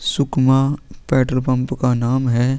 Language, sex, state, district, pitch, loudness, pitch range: Hindi, male, Chhattisgarh, Sukma, 130 Hz, -18 LUFS, 125-135 Hz